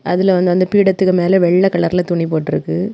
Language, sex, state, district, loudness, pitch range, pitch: Tamil, female, Tamil Nadu, Kanyakumari, -14 LUFS, 175-190 Hz, 180 Hz